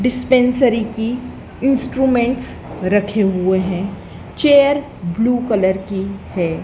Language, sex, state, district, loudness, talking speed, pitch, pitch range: Hindi, female, Madhya Pradesh, Dhar, -17 LUFS, 100 wpm, 225 Hz, 190-255 Hz